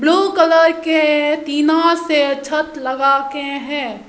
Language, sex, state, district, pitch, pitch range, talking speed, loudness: Hindi, female, Arunachal Pradesh, Lower Dibang Valley, 300 Hz, 275-325 Hz, 130 wpm, -15 LUFS